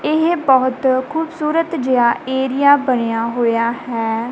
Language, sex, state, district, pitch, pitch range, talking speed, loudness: Punjabi, female, Punjab, Kapurthala, 260 Hz, 235-295 Hz, 110 wpm, -16 LUFS